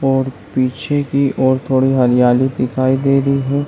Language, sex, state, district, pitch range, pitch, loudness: Hindi, male, Chhattisgarh, Raigarh, 130-135 Hz, 130 Hz, -15 LUFS